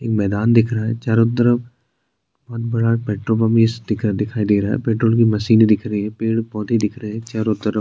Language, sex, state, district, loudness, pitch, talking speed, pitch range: Hindi, male, Uttarakhand, Tehri Garhwal, -18 LUFS, 110 Hz, 210 wpm, 105-115 Hz